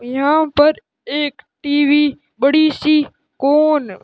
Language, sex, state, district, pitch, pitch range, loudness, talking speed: Hindi, male, Rajasthan, Bikaner, 295 Hz, 280-305 Hz, -15 LUFS, 120 wpm